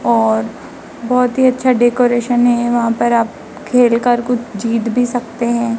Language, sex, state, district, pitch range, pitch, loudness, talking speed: Hindi, male, Madhya Pradesh, Dhar, 230-245 Hz, 240 Hz, -15 LUFS, 165 wpm